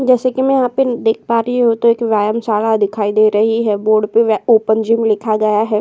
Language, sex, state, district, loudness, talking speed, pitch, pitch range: Hindi, female, Uttar Pradesh, Jyotiba Phule Nagar, -14 LUFS, 235 wpm, 225 Hz, 215-235 Hz